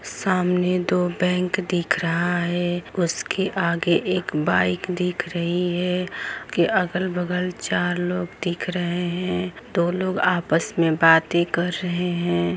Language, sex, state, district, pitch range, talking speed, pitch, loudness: Hindi, female, Bihar, Araria, 170-180 Hz, 135 wpm, 175 Hz, -22 LUFS